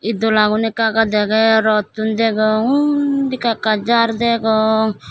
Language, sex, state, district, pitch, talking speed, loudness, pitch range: Chakma, female, Tripura, Dhalai, 220 Hz, 155 wpm, -16 LUFS, 215-230 Hz